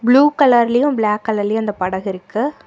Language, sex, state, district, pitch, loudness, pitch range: Tamil, female, Karnataka, Bangalore, 220 Hz, -16 LUFS, 205-255 Hz